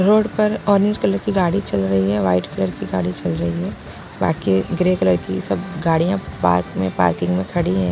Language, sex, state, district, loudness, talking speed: Hindi, female, Punjab, Pathankot, -19 LUFS, 210 wpm